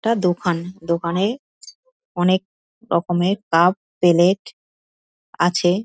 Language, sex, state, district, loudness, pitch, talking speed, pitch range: Bengali, female, West Bengal, Dakshin Dinajpur, -19 LUFS, 180 Hz, 80 wpm, 175-205 Hz